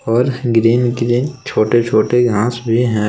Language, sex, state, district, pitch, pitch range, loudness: Hindi, male, Jharkhand, Palamu, 120 Hz, 115-120 Hz, -15 LUFS